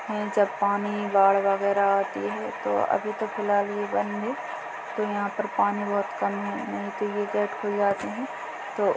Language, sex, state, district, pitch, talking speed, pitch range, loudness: Hindi, female, Chhattisgarh, Bastar, 205 Hz, 195 wpm, 200-205 Hz, -26 LUFS